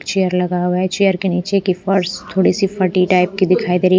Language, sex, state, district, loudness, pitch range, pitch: Hindi, female, Punjab, Pathankot, -16 LUFS, 180-190 Hz, 185 Hz